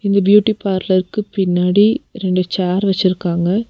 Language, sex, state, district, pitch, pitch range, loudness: Tamil, female, Tamil Nadu, Nilgiris, 195 Hz, 185-210 Hz, -16 LUFS